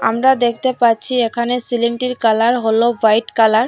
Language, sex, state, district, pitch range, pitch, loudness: Bengali, female, Assam, Hailakandi, 225-250 Hz, 235 Hz, -15 LUFS